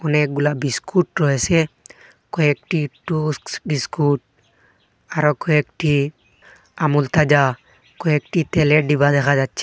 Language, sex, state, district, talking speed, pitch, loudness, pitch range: Bengali, male, Assam, Hailakandi, 95 wpm, 145 Hz, -19 LUFS, 140-155 Hz